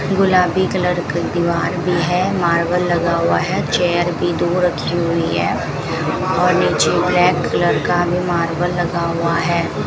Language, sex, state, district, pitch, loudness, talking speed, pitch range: Hindi, female, Rajasthan, Bikaner, 175 Hz, -17 LUFS, 160 wpm, 170-180 Hz